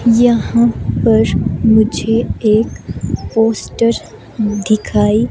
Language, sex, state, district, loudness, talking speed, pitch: Hindi, female, Himachal Pradesh, Shimla, -14 LUFS, 70 wpm, 215 Hz